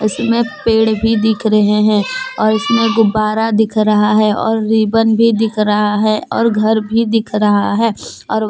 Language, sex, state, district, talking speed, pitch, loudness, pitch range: Hindi, female, Jharkhand, Deoghar, 175 wpm, 220 Hz, -13 LUFS, 215-225 Hz